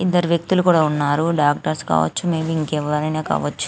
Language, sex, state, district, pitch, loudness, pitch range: Telugu, female, Andhra Pradesh, Anantapur, 155 Hz, -19 LUFS, 145-170 Hz